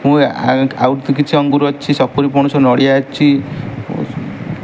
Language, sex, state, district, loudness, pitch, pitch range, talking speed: Odia, male, Odisha, Malkangiri, -14 LUFS, 140 Hz, 135-145 Hz, 130 wpm